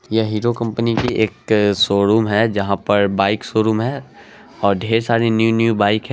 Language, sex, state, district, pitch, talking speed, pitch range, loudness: Hindi, male, Bihar, Araria, 110 Hz, 185 wpm, 100-115 Hz, -17 LUFS